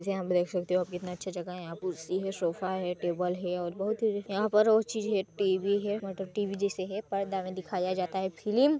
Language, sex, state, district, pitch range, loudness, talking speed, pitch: Hindi, female, Chhattisgarh, Sarguja, 180-200 Hz, -31 LUFS, 260 wpm, 190 Hz